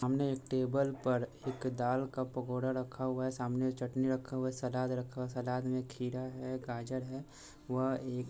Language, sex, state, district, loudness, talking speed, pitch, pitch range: Hindi, male, Jharkhand, Sahebganj, -37 LUFS, 200 wpm, 130 Hz, 125-130 Hz